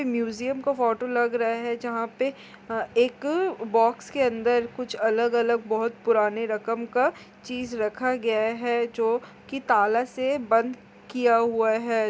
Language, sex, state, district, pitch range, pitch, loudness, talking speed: Hindi, female, Chhattisgarh, Korba, 225-250 Hz, 235 Hz, -25 LUFS, 155 wpm